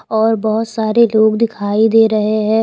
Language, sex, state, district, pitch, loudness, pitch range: Hindi, female, Himachal Pradesh, Shimla, 220 Hz, -14 LUFS, 215-225 Hz